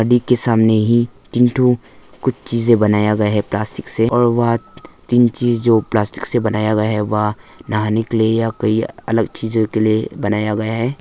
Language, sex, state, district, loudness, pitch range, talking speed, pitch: Hindi, male, Arunachal Pradesh, Lower Dibang Valley, -17 LUFS, 105-120 Hz, 185 wpm, 110 Hz